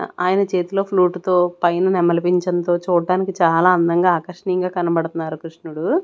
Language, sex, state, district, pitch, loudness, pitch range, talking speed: Telugu, female, Andhra Pradesh, Annamaya, 180 Hz, -18 LUFS, 170-185 Hz, 140 wpm